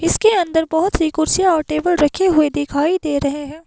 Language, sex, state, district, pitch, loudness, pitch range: Hindi, female, Himachal Pradesh, Shimla, 320 Hz, -17 LUFS, 295-355 Hz